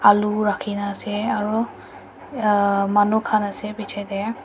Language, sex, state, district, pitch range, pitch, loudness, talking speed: Nagamese, female, Nagaland, Dimapur, 205-215 Hz, 210 Hz, -21 LUFS, 120 wpm